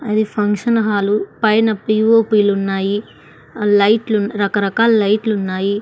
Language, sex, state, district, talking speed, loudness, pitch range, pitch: Telugu, female, Andhra Pradesh, Annamaya, 105 wpm, -16 LUFS, 200-220 Hz, 210 Hz